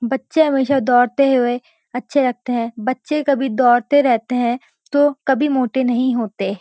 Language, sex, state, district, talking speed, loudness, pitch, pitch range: Hindi, female, Uttarakhand, Uttarkashi, 155 wpm, -17 LUFS, 255 Hz, 245-275 Hz